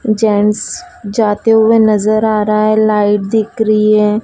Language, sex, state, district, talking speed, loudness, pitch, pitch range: Hindi, female, Madhya Pradesh, Dhar, 155 wpm, -12 LUFS, 215 Hz, 210-220 Hz